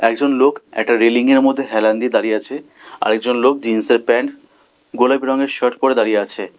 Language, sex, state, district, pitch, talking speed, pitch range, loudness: Bengali, male, West Bengal, Alipurduar, 125 Hz, 175 wpm, 115-135 Hz, -16 LUFS